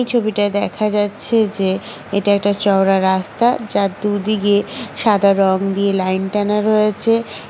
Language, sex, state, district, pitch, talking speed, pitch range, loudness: Bengali, female, West Bengal, Jhargram, 205 Hz, 145 wpm, 195-215 Hz, -17 LUFS